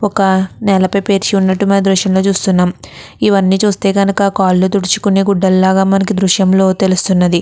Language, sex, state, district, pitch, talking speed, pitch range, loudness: Telugu, female, Andhra Pradesh, Guntur, 195 Hz, 135 wpm, 190-200 Hz, -12 LUFS